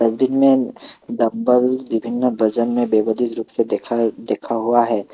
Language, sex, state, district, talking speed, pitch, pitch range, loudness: Hindi, male, Assam, Kamrup Metropolitan, 150 wpm, 120 Hz, 115-125 Hz, -18 LUFS